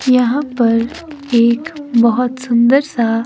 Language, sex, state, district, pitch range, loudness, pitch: Hindi, female, Himachal Pradesh, Shimla, 235-280 Hz, -14 LUFS, 250 Hz